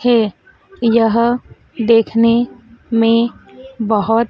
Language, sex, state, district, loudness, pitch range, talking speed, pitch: Hindi, female, Madhya Pradesh, Dhar, -15 LUFS, 225-240 Hz, 70 wpm, 230 Hz